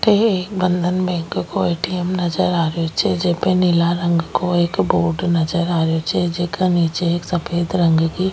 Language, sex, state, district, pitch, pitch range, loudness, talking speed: Rajasthani, female, Rajasthan, Nagaur, 175 Hz, 170-180 Hz, -18 LUFS, 130 wpm